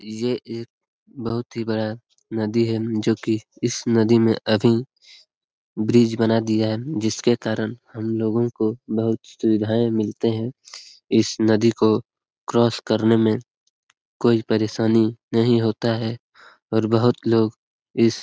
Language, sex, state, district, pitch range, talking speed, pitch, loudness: Hindi, male, Bihar, Lakhisarai, 110-115 Hz, 140 wpm, 115 Hz, -21 LUFS